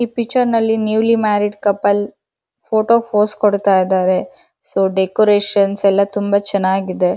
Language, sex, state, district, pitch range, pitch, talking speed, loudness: Kannada, female, Karnataka, Dharwad, 195-215 Hz, 205 Hz, 125 wpm, -15 LUFS